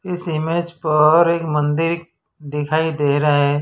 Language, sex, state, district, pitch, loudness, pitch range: Hindi, male, Gujarat, Valsad, 155 Hz, -18 LUFS, 150-170 Hz